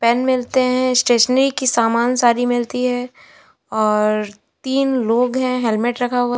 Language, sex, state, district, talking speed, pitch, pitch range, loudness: Hindi, female, Uttar Pradesh, Lalitpur, 160 wpm, 245 Hz, 235-255 Hz, -17 LUFS